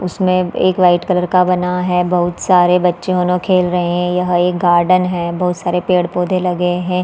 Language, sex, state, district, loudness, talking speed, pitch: Hindi, female, Chhattisgarh, Balrampur, -15 LUFS, 195 wpm, 180 Hz